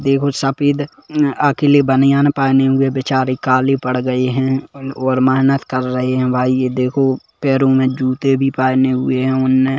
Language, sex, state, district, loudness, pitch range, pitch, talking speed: Hindi, male, Chhattisgarh, Kabirdham, -15 LUFS, 130-135 Hz, 130 Hz, 165 wpm